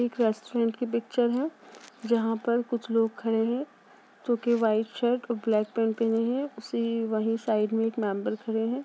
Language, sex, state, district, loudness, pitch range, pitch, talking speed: Hindi, female, Uttar Pradesh, Jalaun, -28 LUFS, 225-240 Hz, 230 Hz, 190 wpm